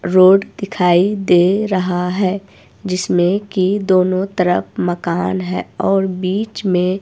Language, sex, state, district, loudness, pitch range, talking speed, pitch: Hindi, female, Himachal Pradesh, Shimla, -16 LUFS, 180-195 Hz, 120 wpm, 185 Hz